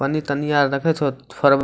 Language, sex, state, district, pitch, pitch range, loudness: Maithili, male, Bihar, Supaul, 140 Hz, 140-145 Hz, -20 LUFS